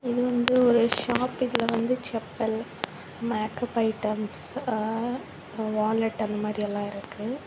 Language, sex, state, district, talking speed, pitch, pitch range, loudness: Tamil, female, Tamil Nadu, Kanyakumari, 130 wpm, 225 Hz, 215-245 Hz, -27 LUFS